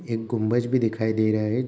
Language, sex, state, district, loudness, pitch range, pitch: Hindi, male, Bihar, Darbhanga, -24 LUFS, 110-120 Hz, 115 Hz